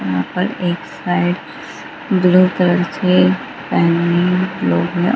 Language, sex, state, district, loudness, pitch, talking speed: Hindi, female, Bihar, Gaya, -16 LUFS, 175 Hz, 130 wpm